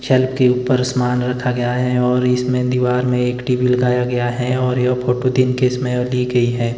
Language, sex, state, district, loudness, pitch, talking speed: Hindi, male, Himachal Pradesh, Shimla, -17 LUFS, 125 Hz, 220 wpm